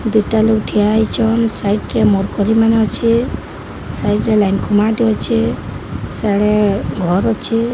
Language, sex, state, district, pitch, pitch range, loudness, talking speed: Odia, male, Odisha, Sambalpur, 210 Hz, 200-225 Hz, -15 LUFS, 140 wpm